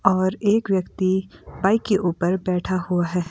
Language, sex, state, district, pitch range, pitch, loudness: Hindi, female, Himachal Pradesh, Shimla, 180-195 Hz, 185 Hz, -22 LUFS